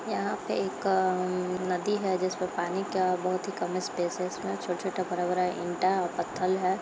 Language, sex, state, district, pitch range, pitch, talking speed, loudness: Hindi, female, Uttar Pradesh, Etah, 180-185 Hz, 185 Hz, 195 wpm, -30 LUFS